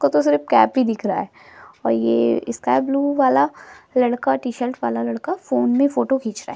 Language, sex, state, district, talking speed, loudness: Hindi, female, Delhi, New Delhi, 210 wpm, -20 LUFS